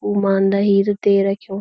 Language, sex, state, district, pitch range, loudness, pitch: Garhwali, female, Uttarakhand, Uttarkashi, 195-205 Hz, -17 LUFS, 200 Hz